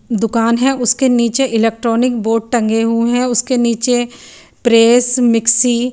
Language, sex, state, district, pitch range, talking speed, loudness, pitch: Hindi, female, Bihar, Katihar, 230-250 Hz, 140 wpm, -13 LUFS, 235 Hz